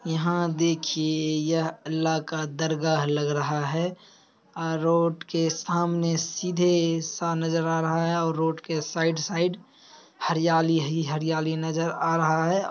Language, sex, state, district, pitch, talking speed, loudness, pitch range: Hindi, male, Bihar, Samastipur, 165 Hz, 150 wpm, -25 LUFS, 160-170 Hz